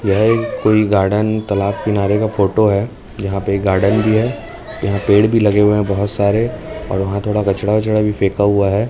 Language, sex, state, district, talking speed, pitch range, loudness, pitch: Hindi, male, Chhattisgarh, Raipur, 215 wpm, 100-110 Hz, -15 LUFS, 105 Hz